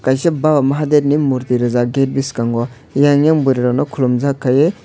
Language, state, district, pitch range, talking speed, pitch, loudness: Kokborok, Tripura, West Tripura, 125-145 Hz, 175 wpm, 135 Hz, -15 LUFS